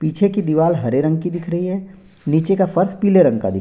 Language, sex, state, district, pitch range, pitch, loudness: Hindi, male, Bihar, Bhagalpur, 155-190 Hz, 175 Hz, -17 LUFS